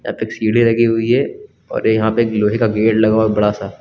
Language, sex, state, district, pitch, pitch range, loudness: Hindi, male, Uttar Pradesh, Lucknow, 110 Hz, 110-115 Hz, -15 LUFS